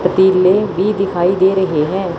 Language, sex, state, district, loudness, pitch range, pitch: Hindi, female, Chandigarh, Chandigarh, -14 LUFS, 180-195 Hz, 190 Hz